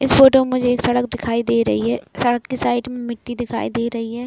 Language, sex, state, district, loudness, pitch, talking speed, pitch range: Hindi, female, Chhattisgarh, Raigarh, -18 LUFS, 240 Hz, 265 wpm, 230-250 Hz